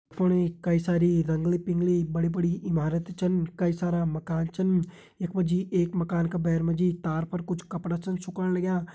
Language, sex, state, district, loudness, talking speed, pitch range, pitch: Hindi, male, Uttarakhand, Tehri Garhwal, -27 LUFS, 195 wpm, 170-180 Hz, 175 Hz